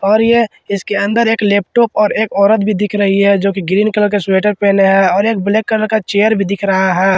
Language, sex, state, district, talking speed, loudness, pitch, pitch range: Hindi, male, Jharkhand, Ranchi, 260 wpm, -13 LUFS, 205 Hz, 195-215 Hz